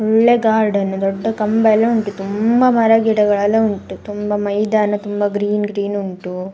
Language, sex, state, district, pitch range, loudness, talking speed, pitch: Kannada, female, Karnataka, Dakshina Kannada, 205-220 Hz, -16 LUFS, 140 wpm, 210 Hz